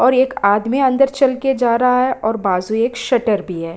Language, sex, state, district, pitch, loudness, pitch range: Hindi, female, Bihar, Kishanganj, 245 Hz, -16 LUFS, 210-260 Hz